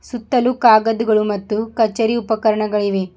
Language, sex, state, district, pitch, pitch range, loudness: Kannada, female, Karnataka, Bidar, 220 Hz, 210-230 Hz, -17 LUFS